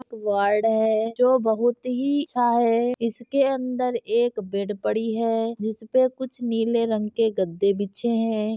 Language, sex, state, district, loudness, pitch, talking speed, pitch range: Hindi, female, Bihar, Bhagalpur, -23 LUFS, 230 Hz, 145 wpm, 220-245 Hz